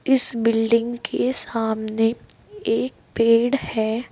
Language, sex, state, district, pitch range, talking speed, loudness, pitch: Hindi, female, Uttar Pradesh, Saharanpur, 225-250 Hz, 100 wpm, -19 LUFS, 230 Hz